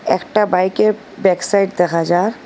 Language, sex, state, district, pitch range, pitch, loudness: Bengali, female, Assam, Hailakandi, 180-210 Hz, 190 Hz, -16 LUFS